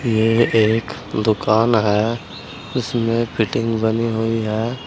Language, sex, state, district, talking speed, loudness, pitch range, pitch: Hindi, male, Uttar Pradesh, Saharanpur, 110 wpm, -19 LUFS, 110-115 Hz, 115 Hz